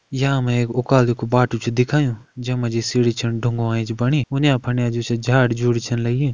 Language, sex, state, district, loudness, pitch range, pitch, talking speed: Kumaoni, male, Uttarakhand, Uttarkashi, -20 LUFS, 120-130 Hz, 120 Hz, 220 wpm